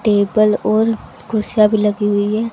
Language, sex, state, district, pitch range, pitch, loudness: Hindi, female, Haryana, Rohtak, 210-220 Hz, 215 Hz, -16 LUFS